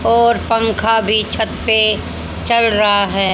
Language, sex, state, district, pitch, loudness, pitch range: Hindi, female, Haryana, Charkhi Dadri, 220 Hz, -14 LUFS, 210-230 Hz